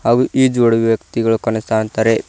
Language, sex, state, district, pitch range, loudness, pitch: Kannada, male, Karnataka, Koppal, 110-120 Hz, -16 LUFS, 115 Hz